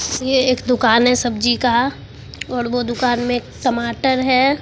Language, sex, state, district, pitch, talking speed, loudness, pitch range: Hindi, female, Bihar, Katihar, 245 Hz, 155 wpm, -17 LUFS, 240-255 Hz